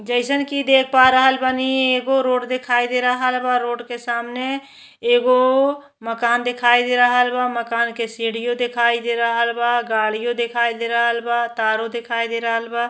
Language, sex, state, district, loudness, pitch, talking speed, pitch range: Bhojpuri, female, Uttar Pradesh, Deoria, -18 LUFS, 240 Hz, 175 wpm, 235-255 Hz